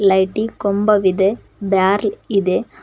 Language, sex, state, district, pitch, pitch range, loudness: Kannada, female, Karnataka, Koppal, 200 Hz, 190-210 Hz, -17 LUFS